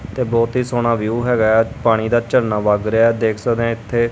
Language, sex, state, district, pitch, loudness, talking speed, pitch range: Punjabi, male, Punjab, Kapurthala, 115 Hz, -17 LUFS, 205 wpm, 110-120 Hz